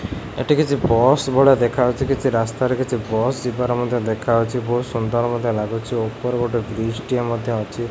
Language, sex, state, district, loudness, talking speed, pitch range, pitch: Odia, male, Odisha, Khordha, -20 LUFS, 165 wpm, 115-130 Hz, 120 Hz